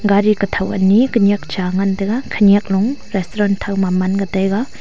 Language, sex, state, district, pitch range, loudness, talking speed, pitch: Wancho, female, Arunachal Pradesh, Longding, 195-205 Hz, -16 LUFS, 160 wpm, 200 Hz